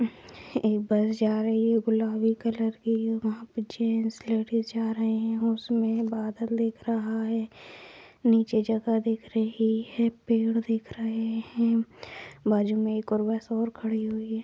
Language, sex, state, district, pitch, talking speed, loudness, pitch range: Hindi, female, Bihar, Sitamarhi, 225 Hz, 160 wpm, -27 LUFS, 220-230 Hz